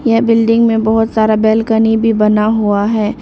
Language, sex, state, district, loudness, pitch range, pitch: Hindi, female, Arunachal Pradesh, Lower Dibang Valley, -12 LUFS, 215-225 Hz, 220 Hz